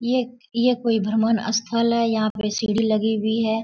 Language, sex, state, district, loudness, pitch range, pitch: Hindi, female, Bihar, Bhagalpur, -22 LUFS, 220-235 Hz, 225 Hz